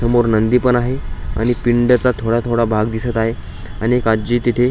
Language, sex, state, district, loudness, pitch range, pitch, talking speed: Marathi, male, Maharashtra, Washim, -17 LUFS, 110-120 Hz, 120 Hz, 230 wpm